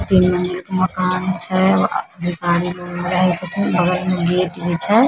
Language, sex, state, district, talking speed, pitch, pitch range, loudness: Maithili, female, Bihar, Samastipur, 165 wpm, 180 Hz, 175-185 Hz, -18 LUFS